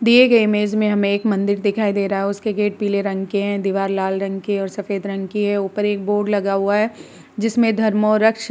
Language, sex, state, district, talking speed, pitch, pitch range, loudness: Hindi, female, Uttar Pradesh, Muzaffarnagar, 255 wpm, 205 Hz, 200-215 Hz, -19 LUFS